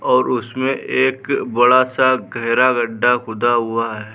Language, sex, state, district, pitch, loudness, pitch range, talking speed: Hindi, male, Bihar, Vaishali, 125 Hz, -17 LUFS, 115-130 Hz, 145 wpm